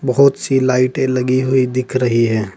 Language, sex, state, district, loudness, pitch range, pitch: Hindi, male, Uttar Pradesh, Saharanpur, -15 LUFS, 125-130 Hz, 130 Hz